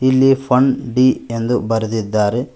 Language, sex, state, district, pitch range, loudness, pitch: Kannada, male, Karnataka, Koppal, 115-130 Hz, -16 LUFS, 125 Hz